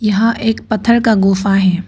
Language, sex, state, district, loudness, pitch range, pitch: Hindi, female, Arunachal Pradesh, Papum Pare, -13 LUFS, 195-225 Hz, 215 Hz